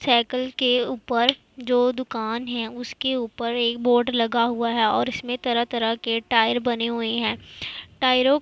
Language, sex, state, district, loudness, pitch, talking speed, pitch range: Hindi, female, Punjab, Pathankot, -23 LUFS, 240 Hz, 170 wpm, 230-250 Hz